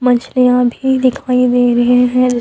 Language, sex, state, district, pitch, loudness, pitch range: Hindi, female, Chhattisgarh, Sukma, 250 Hz, -12 LUFS, 245-250 Hz